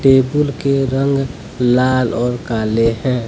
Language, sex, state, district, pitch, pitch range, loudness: Hindi, male, Jharkhand, Deoghar, 130 Hz, 120-135 Hz, -16 LUFS